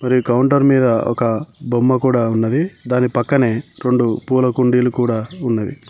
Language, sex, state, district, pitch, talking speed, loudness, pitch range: Telugu, male, Telangana, Mahabubabad, 125 Hz, 140 wpm, -16 LUFS, 120-130 Hz